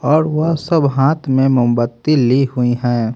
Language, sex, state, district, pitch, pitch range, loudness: Hindi, male, Haryana, Jhajjar, 135 Hz, 120-155 Hz, -15 LUFS